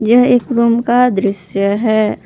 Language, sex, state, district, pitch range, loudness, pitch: Hindi, female, Jharkhand, Palamu, 200-240 Hz, -13 LUFS, 225 Hz